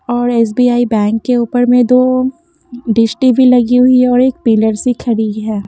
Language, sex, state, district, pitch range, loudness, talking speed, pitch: Hindi, female, Haryana, Jhajjar, 225-255 Hz, -11 LUFS, 190 wpm, 245 Hz